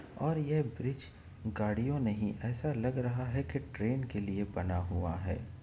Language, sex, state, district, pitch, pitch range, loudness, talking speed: Hindi, male, Chhattisgarh, Korba, 115 Hz, 105-130 Hz, -35 LUFS, 170 wpm